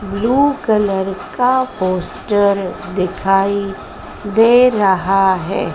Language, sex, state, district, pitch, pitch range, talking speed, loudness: Hindi, female, Madhya Pradesh, Dhar, 200 Hz, 190-225 Hz, 85 wpm, -15 LUFS